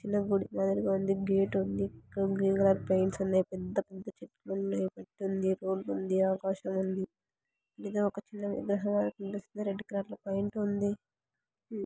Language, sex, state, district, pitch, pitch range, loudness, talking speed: Telugu, female, Andhra Pradesh, Anantapur, 195 Hz, 190-200 Hz, -32 LUFS, 120 wpm